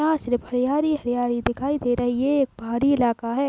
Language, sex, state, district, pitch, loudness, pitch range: Hindi, female, Rajasthan, Nagaur, 250 Hz, -23 LUFS, 245-280 Hz